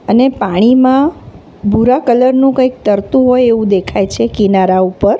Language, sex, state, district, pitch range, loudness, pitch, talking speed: Gujarati, female, Gujarat, Valsad, 200-255 Hz, -11 LUFS, 230 Hz, 140 wpm